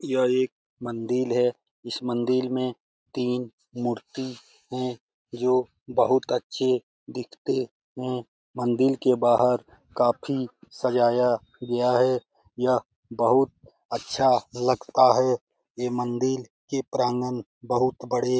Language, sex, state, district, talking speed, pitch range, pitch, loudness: Hindi, male, Bihar, Jamui, 110 wpm, 120-130 Hz, 125 Hz, -25 LUFS